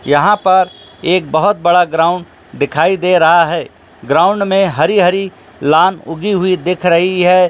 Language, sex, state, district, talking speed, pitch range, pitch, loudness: Hindi, male, Jharkhand, Jamtara, 160 wpm, 165-185 Hz, 180 Hz, -12 LUFS